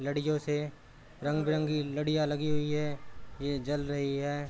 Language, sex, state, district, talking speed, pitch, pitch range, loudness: Hindi, male, Uttar Pradesh, Jalaun, 160 wpm, 145 Hz, 140-150 Hz, -32 LUFS